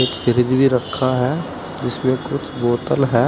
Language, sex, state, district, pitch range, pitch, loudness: Hindi, male, Uttar Pradesh, Saharanpur, 120-135 Hz, 130 Hz, -19 LUFS